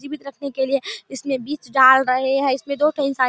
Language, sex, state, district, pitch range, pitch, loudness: Hindi, female, Bihar, Darbhanga, 265-280 Hz, 275 Hz, -19 LUFS